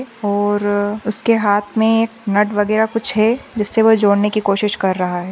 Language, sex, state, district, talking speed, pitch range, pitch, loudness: Hindi, female, Maharashtra, Aurangabad, 190 wpm, 205-225 Hz, 210 Hz, -16 LUFS